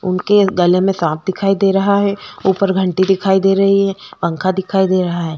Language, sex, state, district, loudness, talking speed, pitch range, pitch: Hindi, female, Chhattisgarh, Korba, -15 LUFS, 210 wpm, 185-195 Hz, 190 Hz